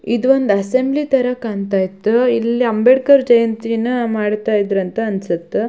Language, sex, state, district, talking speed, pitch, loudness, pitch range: Kannada, female, Karnataka, Shimoga, 125 wpm, 230 Hz, -16 LUFS, 205-250 Hz